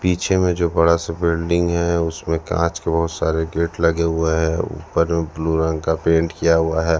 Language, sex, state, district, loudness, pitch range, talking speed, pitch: Hindi, male, Punjab, Kapurthala, -19 LUFS, 80-85 Hz, 195 wpm, 85 Hz